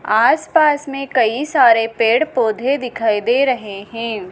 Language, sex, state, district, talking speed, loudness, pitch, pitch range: Hindi, female, Madhya Pradesh, Dhar, 155 wpm, -16 LUFS, 240 Hz, 225-275 Hz